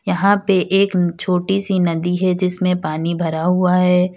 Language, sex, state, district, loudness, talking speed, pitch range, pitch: Hindi, female, Uttar Pradesh, Lalitpur, -17 LUFS, 170 wpm, 175-190 Hz, 180 Hz